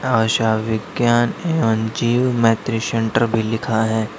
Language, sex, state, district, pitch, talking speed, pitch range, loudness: Hindi, male, Uttar Pradesh, Lalitpur, 115 Hz, 130 wpm, 110-120 Hz, -18 LUFS